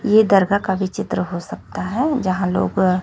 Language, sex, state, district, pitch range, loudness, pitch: Hindi, female, Chhattisgarh, Raipur, 185-215 Hz, -19 LUFS, 190 Hz